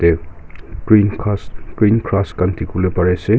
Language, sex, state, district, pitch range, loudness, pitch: Nagamese, male, Nagaland, Kohima, 85-105 Hz, -17 LUFS, 90 Hz